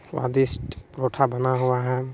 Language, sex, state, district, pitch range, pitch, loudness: Hindi, male, Bihar, Supaul, 125-130 Hz, 130 Hz, -24 LUFS